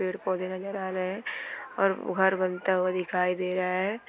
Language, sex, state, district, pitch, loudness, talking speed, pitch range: Hindi, female, Bihar, Gopalganj, 185 Hz, -29 LUFS, 190 wpm, 185-190 Hz